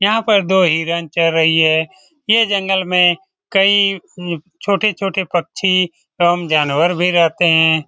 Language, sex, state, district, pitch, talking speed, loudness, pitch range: Hindi, male, Bihar, Lakhisarai, 180 Hz, 130 wpm, -15 LUFS, 165-195 Hz